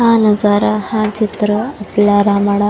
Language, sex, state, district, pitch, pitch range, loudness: Marathi, female, Maharashtra, Chandrapur, 210 Hz, 205-215 Hz, -14 LUFS